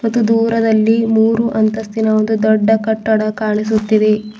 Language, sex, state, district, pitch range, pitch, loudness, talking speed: Kannada, female, Karnataka, Bidar, 215-225 Hz, 220 Hz, -14 LUFS, 95 wpm